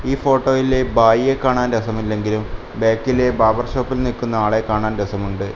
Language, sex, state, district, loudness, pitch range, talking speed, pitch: Malayalam, male, Kerala, Kasaragod, -18 LUFS, 110-130 Hz, 130 wpm, 115 Hz